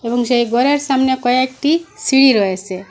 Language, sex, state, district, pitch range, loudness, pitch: Bengali, female, Assam, Hailakandi, 235-270 Hz, -15 LUFS, 255 Hz